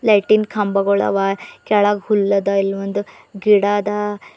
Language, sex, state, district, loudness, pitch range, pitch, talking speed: Kannada, female, Karnataka, Bidar, -17 LUFS, 200-210 Hz, 205 Hz, 95 wpm